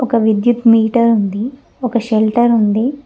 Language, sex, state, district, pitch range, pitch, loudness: Telugu, female, Telangana, Mahabubabad, 220-240 Hz, 230 Hz, -14 LUFS